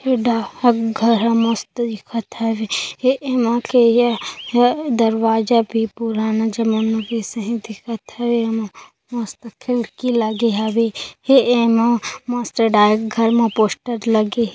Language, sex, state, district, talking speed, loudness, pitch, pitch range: Hindi, female, Chhattisgarh, Korba, 135 wpm, -18 LUFS, 230 Hz, 225-240 Hz